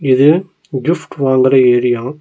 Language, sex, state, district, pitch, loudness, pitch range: Tamil, male, Tamil Nadu, Nilgiris, 130 Hz, -13 LUFS, 130-150 Hz